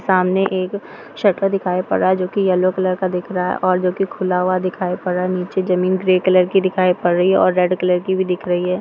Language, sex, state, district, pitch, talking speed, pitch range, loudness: Hindi, female, Bihar, Kishanganj, 185 Hz, 265 wpm, 180-185 Hz, -18 LUFS